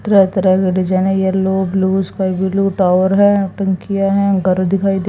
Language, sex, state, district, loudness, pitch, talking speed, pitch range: Hindi, female, Haryana, Jhajjar, -15 LUFS, 190 Hz, 190 wpm, 185-195 Hz